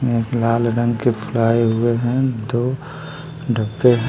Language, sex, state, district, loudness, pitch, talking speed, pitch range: Hindi, male, Bihar, Patna, -19 LUFS, 120 Hz, 145 wpm, 115-125 Hz